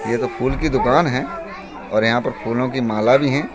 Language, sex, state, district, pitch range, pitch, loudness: Hindi, male, Uttar Pradesh, Budaun, 120-135 Hz, 125 Hz, -19 LUFS